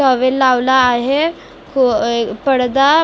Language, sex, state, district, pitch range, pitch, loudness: Marathi, female, Maharashtra, Mumbai Suburban, 250-270 Hz, 260 Hz, -14 LUFS